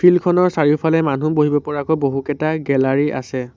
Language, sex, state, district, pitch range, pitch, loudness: Assamese, male, Assam, Sonitpur, 140-160 Hz, 150 Hz, -17 LUFS